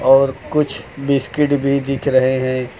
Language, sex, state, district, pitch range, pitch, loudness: Hindi, male, Uttar Pradesh, Lucknow, 130-140 Hz, 135 Hz, -17 LUFS